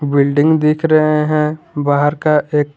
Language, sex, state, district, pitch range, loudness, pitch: Hindi, male, Jharkhand, Garhwa, 145-155 Hz, -14 LUFS, 150 Hz